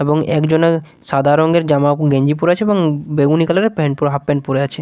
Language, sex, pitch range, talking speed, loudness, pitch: Bengali, male, 145-165 Hz, 225 wpm, -15 LUFS, 150 Hz